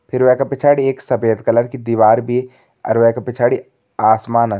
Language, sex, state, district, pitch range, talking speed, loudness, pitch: Kumaoni, male, Uttarakhand, Tehri Garhwal, 115-130 Hz, 195 wpm, -15 LUFS, 120 Hz